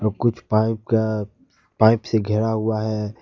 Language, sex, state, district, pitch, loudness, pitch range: Hindi, male, Jharkhand, Ranchi, 110 Hz, -21 LUFS, 105-110 Hz